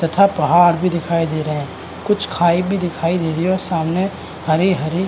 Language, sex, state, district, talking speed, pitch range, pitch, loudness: Hindi, male, Uttarakhand, Uttarkashi, 210 wpm, 160-185 Hz, 170 Hz, -17 LUFS